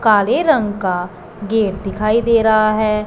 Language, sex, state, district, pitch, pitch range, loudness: Hindi, female, Punjab, Pathankot, 215 Hz, 200-220 Hz, -16 LUFS